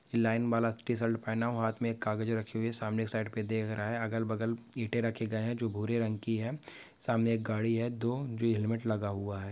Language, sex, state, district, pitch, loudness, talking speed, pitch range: Hindi, male, Maharashtra, Nagpur, 115 Hz, -33 LUFS, 250 wpm, 110-115 Hz